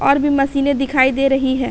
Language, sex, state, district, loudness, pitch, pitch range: Hindi, female, Uttar Pradesh, Hamirpur, -16 LUFS, 275 Hz, 265-275 Hz